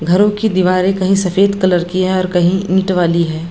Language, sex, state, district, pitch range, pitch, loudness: Hindi, female, Bihar, Jamui, 180-190 Hz, 185 Hz, -14 LUFS